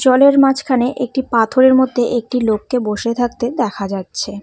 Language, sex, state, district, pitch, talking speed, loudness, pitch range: Bengali, female, West Bengal, Cooch Behar, 245 Hz, 150 wpm, -15 LUFS, 225-260 Hz